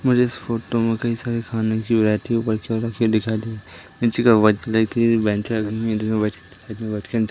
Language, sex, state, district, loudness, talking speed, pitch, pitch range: Hindi, male, Madhya Pradesh, Katni, -21 LUFS, 190 wpm, 110 Hz, 110-115 Hz